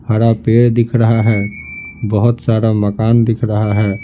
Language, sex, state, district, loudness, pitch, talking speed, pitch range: Hindi, male, Bihar, Patna, -14 LUFS, 110 Hz, 165 wpm, 105-115 Hz